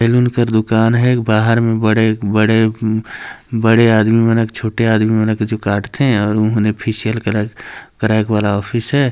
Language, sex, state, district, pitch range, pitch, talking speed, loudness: Hindi, male, Chhattisgarh, Jashpur, 110-115 Hz, 110 Hz, 175 wpm, -15 LUFS